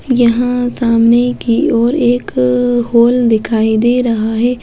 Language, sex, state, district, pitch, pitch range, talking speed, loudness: Hindi, female, Bihar, Lakhisarai, 235 Hz, 230-245 Hz, 130 wpm, -12 LUFS